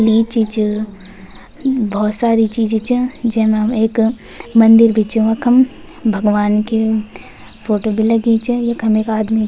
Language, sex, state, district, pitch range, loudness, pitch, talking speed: Garhwali, female, Uttarakhand, Tehri Garhwal, 215-230 Hz, -15 LUFS, 220 Hz, 140 wpm